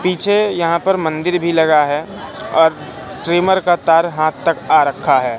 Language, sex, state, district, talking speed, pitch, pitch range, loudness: Hindi, male, Madhya Pradesh, Katni, 180 wpm, 170 Hz, 160-180 Hz, -15 LUFS